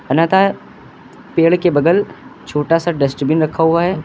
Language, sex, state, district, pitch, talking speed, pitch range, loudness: Hindi, male, Uttar Pradesh, Lucknow, 165 Hz, 135 wpm, 155-175 Hz, -15 LUFS